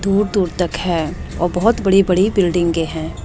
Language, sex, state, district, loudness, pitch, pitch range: Hindi, female, Delhi, New Delhi, -17 LUFS, 180 Hz, 170-195 Hz